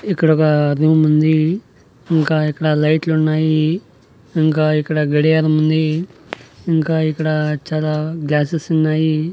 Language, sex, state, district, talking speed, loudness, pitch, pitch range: Telugu, male, Andhra Pradesh, Annamaya, 110 wpm, -16 LUFS, 155 Hz, 155-160 Hz